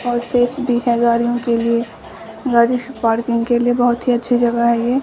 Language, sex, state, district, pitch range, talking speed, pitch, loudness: Hindi, female, Bihar, Samastipur, 235-245 Hz, 215 wpm, 240 Hz, -17 LUFS